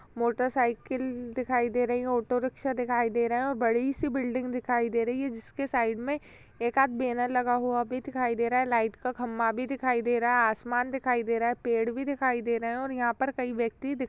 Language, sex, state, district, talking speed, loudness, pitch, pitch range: Hindi, female, Uttar Pradesh, Jyotiba Phule Nagar, 245 wpm, -28 LUFS, 245 Hz, 235-255 Hz